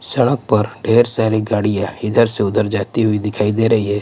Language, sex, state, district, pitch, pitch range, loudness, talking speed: Hindi, male, Punjab, Pathankot, 110 Hz, 105-115 Hz, -16 LUFS, 210 wpm